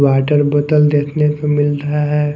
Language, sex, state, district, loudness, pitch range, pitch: Hindi, male, Chhattisgarh, Raipur, -15 LUFS, 145-150 Hz, 145 Hz